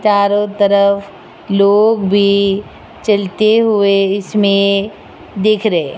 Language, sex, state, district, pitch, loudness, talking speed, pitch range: Hindi, female, Rajasthan, Jaipur, 200 Hz, -13 LUFS, 90 wpm, 200-215 Hz